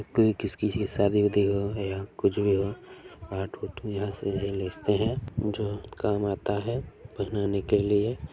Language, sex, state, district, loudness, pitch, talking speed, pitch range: Hindi, male, Chhattisgarh, Balrampur, -28 LUFS, 105 Hz, 165 wpm, 100-105 Hz